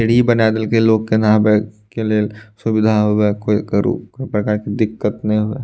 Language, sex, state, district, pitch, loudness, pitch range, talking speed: Maithili, male, Bihar, Madhepura, 110 Hz, -17 LUFS, 105-110 Hz, 180 wpm